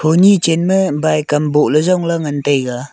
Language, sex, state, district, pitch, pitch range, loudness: Wancho, male, Arunachal Pradesh, Longding, 155 Hz, 145-170 Hz, -14 LUFS